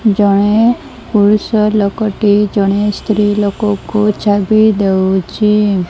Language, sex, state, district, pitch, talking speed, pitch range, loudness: Odia, female, Odisha, Malkangiri, 210 Hz, 100 wpm, 200-215 Hz, -12 LUFS